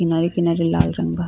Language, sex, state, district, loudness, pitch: Bhojpuri, female, Uttar Pradesh, Ghazipur, -19 LUFS, 165 Hz